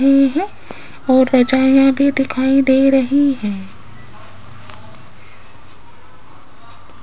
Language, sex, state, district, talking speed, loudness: Hindi, female, Rajasthan, Jaipur, 75 wpm, -14 LUFS